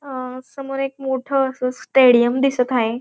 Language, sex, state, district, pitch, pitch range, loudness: Marathi, female, Maharashtra, Dhule, 260 Hz, 250-270 Hz, -19 LUFS